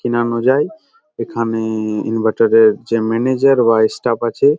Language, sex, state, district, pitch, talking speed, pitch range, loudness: Bengali, male, West Bengal, Jalpaiguri, 115 Hz, 120 wpm, 110-135 Hz, -15 LUFS